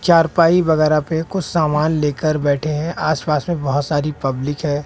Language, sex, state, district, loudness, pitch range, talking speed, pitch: Hindi, male, Bihar, West Champaran, -18 LUFS, 145-160 Hz, 175 wpm, 155 Hz